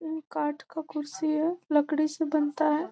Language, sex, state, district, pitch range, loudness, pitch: Hindi, female, Bihar, Gopalganj, 300-315 Hz, -29 LUFS, 310 Hz